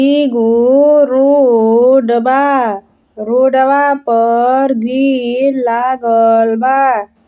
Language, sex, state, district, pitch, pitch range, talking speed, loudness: Bhojpuri, female, Uttar Pradesh, Deoria, 255 Hz, 230-270 Hz, 65 wpm, -11 LUFS